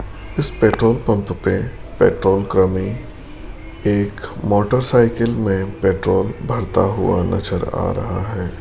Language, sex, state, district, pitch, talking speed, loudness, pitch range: Hindi, male, Rajasthan, Jaipur, 100 Hz, 110 wpm, -18 LUFS, 95-115 Hz